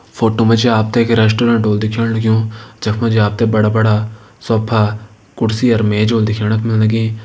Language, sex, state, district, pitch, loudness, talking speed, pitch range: Hindi, male, Uttarakhand, Uttarkashi, 110 Hz, -14 LUFS, 215 wpm, 110-115 Hz